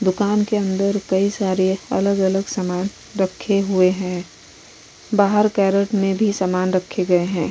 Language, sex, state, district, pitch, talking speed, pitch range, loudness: Hindi, female, Bihar, Vaishali, 195 Hz, 145 wpm, 185-200 Hz, -19 LUFS